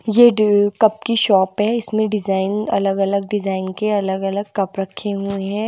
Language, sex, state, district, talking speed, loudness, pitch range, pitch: Hindi, female, Himachal Pradesh, Shimla, 190 wpm, -18 LUFS, 195-215 Hz, 205 Hz